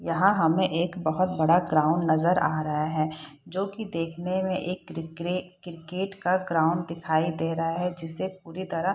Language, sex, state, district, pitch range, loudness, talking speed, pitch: Hindi, female, Bihar, Saharsa, 160-185 Hz, -26 LUFS, 180 wpm, 170 Hz